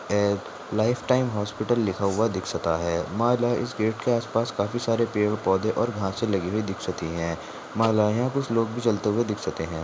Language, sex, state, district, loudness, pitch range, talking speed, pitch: Hindi, male, Maharashtra, Sindhudurg, -25 LUFS, 95-115 Hz, 195 wpm, 105 Hz